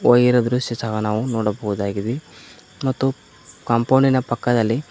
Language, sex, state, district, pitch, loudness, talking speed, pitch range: Kannada, male, Karnataka, Koppal, 120 Hz, -20 LUFS, 100 wpm, 110-130 Hz